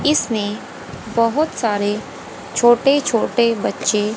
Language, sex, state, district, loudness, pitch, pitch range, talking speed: Hindi, female, Haryana, Rohtak, -18 LUFS, 230 Hz, 210-275 Hz, 85 wpm